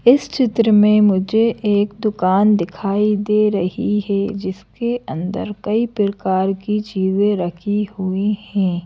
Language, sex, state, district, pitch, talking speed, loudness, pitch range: Hindi, female, Madhya Pradesh, Bhopal, 205 Hz, 130 wpm, -18 LUFS, 190-210 Hz